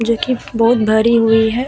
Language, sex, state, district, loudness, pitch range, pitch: Hindi, female, Bihar, Vaishali, -14 LUFS, 225-235 Hz, 230 Hz